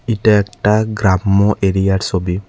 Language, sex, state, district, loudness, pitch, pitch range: Bengali, male, Tripura, Unakoti, -15 LUFS, 100 Hz, 95-105 Hz